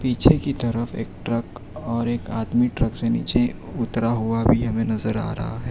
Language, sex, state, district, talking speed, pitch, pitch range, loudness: Hindi, male, Gujarat, Valsad, 200 wpm, 115 Hz, 110-120 Hz, -23 LUFS